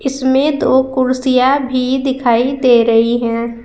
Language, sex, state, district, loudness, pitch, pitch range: Hindi, female, Uttar Pradesh, Saharanpur, -13 LUFS, 255 Hz, 240-265 Hz